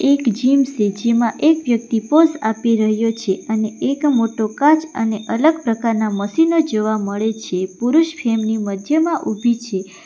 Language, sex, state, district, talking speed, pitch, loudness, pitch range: Gujarati, female, Gujarat, Valsad, 160 wpm, 230 Hz, -17 LUFS, 215-280 Hz